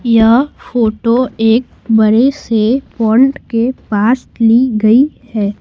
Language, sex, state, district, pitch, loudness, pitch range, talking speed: Hindi, female, Bihar, Patna, 230 Hz, -12 LUFS, 220-250 Hz, 120 wpm